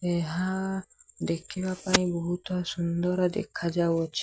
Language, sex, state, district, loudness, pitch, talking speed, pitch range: Odia, male, Odisha, Sambalpur, -29 LUFS, 180 Hz, 115 wpm, 170-185 Hz